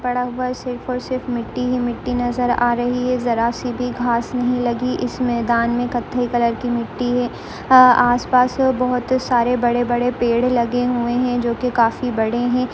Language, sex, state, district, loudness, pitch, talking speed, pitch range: Hindi, female, Rajasthan, Churu, -19 LUFS, 245 Hz, 200 wpm, 240-250 Hz